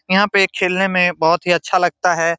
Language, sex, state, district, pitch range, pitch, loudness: Hindi, male, Bihar, Saran, 175-190 Hz, 180 Hz, -16 LUFS